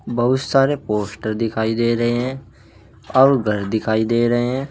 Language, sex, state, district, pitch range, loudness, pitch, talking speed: Hindi, male, Uttar Pradesh, Saharanpur, 110-130 Hz, -19 LUFS, 115 Hz, 165 wpm